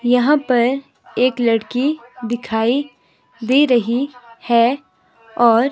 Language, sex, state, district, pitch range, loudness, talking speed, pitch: Hindi, female, Himachal Pradesh, Shimla, 235-265 Hz, -17 LUFS, 95 wpm, 245 Hz